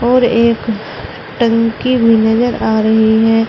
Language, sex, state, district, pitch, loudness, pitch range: Hindi, female, Uttar Pradesh, Saharanpur, 230 Hz, -12 LUFS, 220-235 Hz